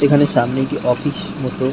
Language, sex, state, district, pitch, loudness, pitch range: Bengali, male, West Bengal, North 24 Parganas, 135 Hz, -18 LUFS, 130-145 Hz